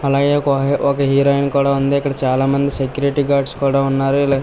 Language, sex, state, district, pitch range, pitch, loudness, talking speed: Telugu, male, Andhra Pradesh, Visakhapatnam, 135-140 Hz, 140 Hz, -16 LUFS, 175 wpm